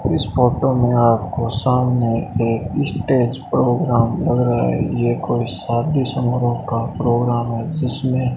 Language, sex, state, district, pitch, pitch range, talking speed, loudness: Hindi, male, Rajasthan, Bikaner, 120 Hz, 115-130 Hz, 145 wpm, -18 LUFS